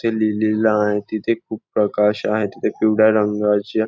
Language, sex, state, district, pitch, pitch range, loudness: Marathi, male, Maharashtra, Nagpur, 110 Hz, 105-110 Hz, -19 LUFS